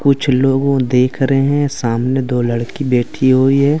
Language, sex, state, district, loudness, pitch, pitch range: Hindi, male, Jharkhand, Deoghar, -15 LUFS, 135 Hz, 125-140 Hz